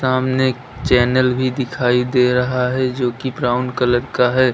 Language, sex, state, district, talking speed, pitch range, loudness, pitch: Hindi, male, Uttar Pradesh, Lalitpur, 185 wpm, 125-130 Hz, -17 LUFS, 125 Hz